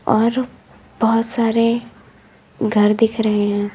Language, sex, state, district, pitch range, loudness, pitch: Hindi, female, Uttar Pradesh, Lalitpur, 210-230 Hz, -18 LUFS, 225 Hz